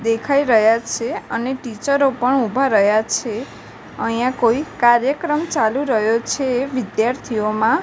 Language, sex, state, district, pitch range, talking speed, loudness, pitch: Gujarati, female, Gujarat, Gandhinagar, 225-270 Hz, 120 wpm, -18 LUFS, 240 Hz